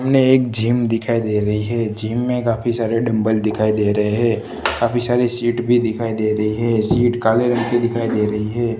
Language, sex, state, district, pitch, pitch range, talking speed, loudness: Hindi, male, Gujarat, Gandhinagar, 115 Hz, 110-120 Hz, 220 wpm, -18 LUFS